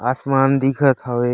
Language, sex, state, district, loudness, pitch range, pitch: Chhattisgarhi, male, Chhattisgarh, Raigarh, -17 LUFS, 125-135 Hz, 135 Hz